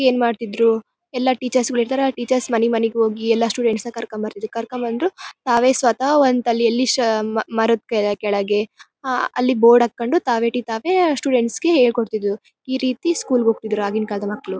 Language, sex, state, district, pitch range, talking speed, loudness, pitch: Kannada, female, Karnataka, Bellary, 225-255 Hz, 175 wpm, -19 LUFS, 235 Hz